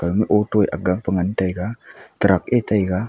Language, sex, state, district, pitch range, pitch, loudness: Wancho, female, Arunachal Pradesh, Longding, 90-105 Hz, 100 Hz, -20 LUFS